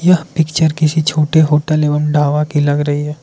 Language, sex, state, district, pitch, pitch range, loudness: Hindi, male, Arunachal Pradesh, Lower Dibang Valley, 150 Hz, 150-160 Hz, -14 LUFS